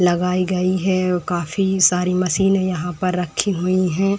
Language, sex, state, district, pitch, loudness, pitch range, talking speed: Hindi, female, Uttar Pradesh, Etah, 185 Hz, -19 LUFS, 180-190 Hz, 170 wpm